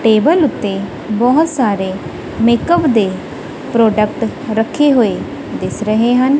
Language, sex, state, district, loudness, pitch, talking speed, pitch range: Punjabi, female, Punjab, Kapurthala, -14 LUFS, 230 Hz, 110 wpm, 215-275 Hz